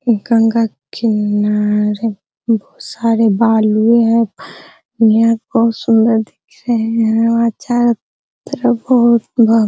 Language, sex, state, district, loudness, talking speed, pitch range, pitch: Hindi, female, Bihar, Araria, -14 LUFS, 110 wpm, 220-235 Hz, 230 Hz